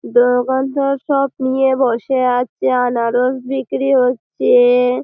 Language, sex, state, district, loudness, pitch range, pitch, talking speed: Bengali, female, West Bengal, Malda, -15 LUFS, 245-265 Hz, 250 Hz, 95 wpm